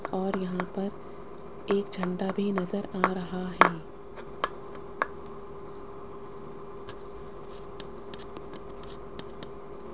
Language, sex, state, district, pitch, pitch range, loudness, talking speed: Hindi, female, Rajasthan, Jaipur, 195 Hz, 185-200 Hz, -32 LUFS, 60 wpm